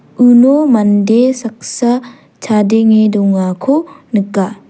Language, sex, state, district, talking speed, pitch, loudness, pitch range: Garo, female, Meghalaya, South Garo Hills, 75 wpm, 225 Hz, -11 LUFS, 205-250 Hz